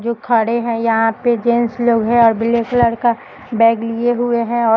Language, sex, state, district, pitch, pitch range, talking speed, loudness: Hindi, female, Uttar Pradesh, Budaun, 235 Hz, 230-240 Hz, 225 wpm, -15 LUFS